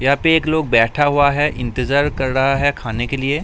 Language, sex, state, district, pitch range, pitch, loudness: Hindi, male, Uttar Pradesh, Hamirpur, 130-145 Hz, 140 Hz, -17 LUFS